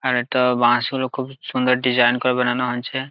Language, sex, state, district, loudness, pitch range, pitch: Bengali, male, West Bengal, Jalpaiguri, -19 LUFS, 120-130 Hz, 125 Hz